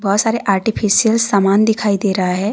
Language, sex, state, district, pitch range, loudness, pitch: Hindi, female, Jharkhand, Deoghar, 195-220 Hz, -15 LUFS, 205 Hz